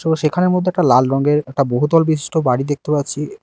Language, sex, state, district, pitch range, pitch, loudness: Bengali, male, Karnataka, Bangalore, 140-160 Hz, 150 Hz, -16 LUFS